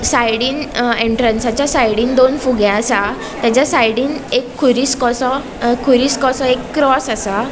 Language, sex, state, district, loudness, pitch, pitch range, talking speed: Konkani, female, Goa, North and South Goa, -15 LUFS, 250 Hz, 230-265 Hz, 135 wpm